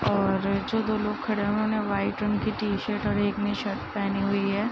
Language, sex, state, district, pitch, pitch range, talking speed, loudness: Hindi, female, Bihar, Bhagalpur, 210 Hz, 200-215 Hz, 230 wpm, -27 LUFS